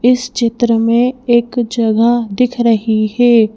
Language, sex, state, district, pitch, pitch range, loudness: Hindi, female, Madhya Pradesh, Bhopal, 235 Hz, 225-245 Hz, -13 LUFS